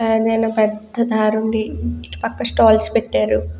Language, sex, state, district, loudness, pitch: Telugu, female, Andhra Pradesh, Guntur, -18 LUFS, 220 Hz